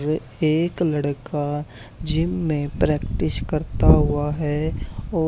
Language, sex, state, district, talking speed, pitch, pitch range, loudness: Hindi, male, Haryana, Charkhi Dadri, 115 wpm, 150 Hz, 145-160 Hz, -22 LUFS